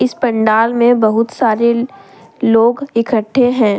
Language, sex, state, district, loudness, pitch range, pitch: Hindi, female, Jharkhand, Deoghar, -13 LUFS, 225-245 Hz, 235 Hz